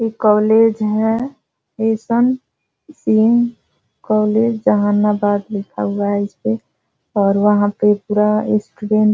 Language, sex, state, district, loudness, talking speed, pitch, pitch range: Hindi, female, Bihar, Jahanabad, -16 LUFS, 120 wpm, 215 Hz, 205-225 Hz